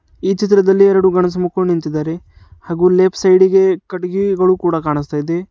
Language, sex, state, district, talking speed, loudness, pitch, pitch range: Kannada, male, Karnataka, Bidar, 150 wpm, -14 LUFS, 185 Hz, 170-190 Hz